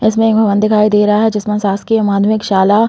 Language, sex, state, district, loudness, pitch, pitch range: Hindi, female, Chhattisgarh, Bastar, -12 LUFS, 210 Hz, 205-220 Hz